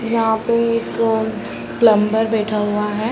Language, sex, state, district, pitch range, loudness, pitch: Hindi, female, Bihar, Sitamarhi, 215-230 Hz, -18 LUFS, 220 Hz